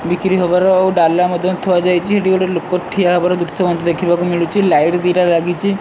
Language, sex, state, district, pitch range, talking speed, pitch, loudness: Odia, male, Odisha, Sambalpur, 175-185 Hz, 195 wpm, 180 Hz, -14 LUFS